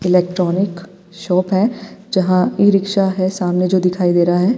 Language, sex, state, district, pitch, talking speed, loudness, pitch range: Hindi, female, Himachal Pradesh, Shimla, 185 Hz, 170 wpm, -16 LUFS, 180-195 Hz